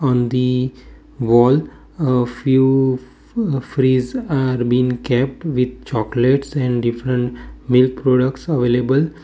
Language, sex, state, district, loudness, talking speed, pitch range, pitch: English, male, Gujarat, Valsad, -18 LUFS, 110 wpm, 125-135 Hz, 130 Hz